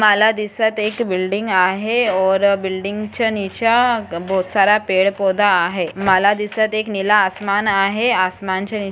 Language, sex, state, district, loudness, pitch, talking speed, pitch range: Marathi, female, Maharashtra, Sindhudurg, -17 LUFS, 200 Hz, 135 wpm, 190-215 Hz